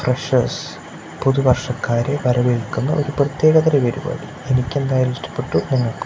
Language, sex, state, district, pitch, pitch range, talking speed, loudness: Malayalam, male, Kerala, Kasaragod, 130 Hz, 125-145 Hz, 110 wpm, -19 LUFS